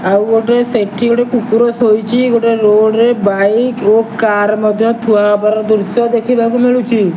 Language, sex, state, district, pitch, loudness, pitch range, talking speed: Odia, male, Odisha, Nuapada, 225 Hz, -12 LUFS, 210-235 Hz, 150 wpm